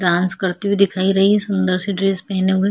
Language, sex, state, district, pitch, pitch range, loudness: Hindi, female, Chhattisgarh, Kabirdham, 195 Hz, 185-200 Hz, -17 LUFS